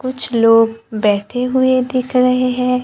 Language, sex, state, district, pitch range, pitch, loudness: Hindi, female, Maharashtra, Gondia, 225-255 Hz, 250 Hz, -15 LUFS